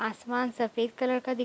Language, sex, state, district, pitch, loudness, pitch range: Hindi, female, Bihar, Kishanganj, 245 Hz, -30 LUFS, 230-255 Hz